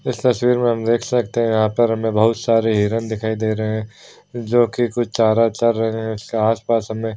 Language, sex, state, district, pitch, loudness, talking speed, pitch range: Hindi, male, Bihar, Bhagalpur, 115 Hz, -18 LUFS, 215 wpm, 110-120 Hz